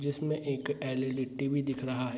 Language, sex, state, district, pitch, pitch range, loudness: Hindi, male, Bihar, Gopalganj, 135 Hz, 130-145 Hz, -33 LUFS